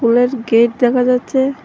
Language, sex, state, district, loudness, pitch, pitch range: Bengali, female, Tripura, Dhalai, -14 LUFS, 245 Hz, 235-260 Hz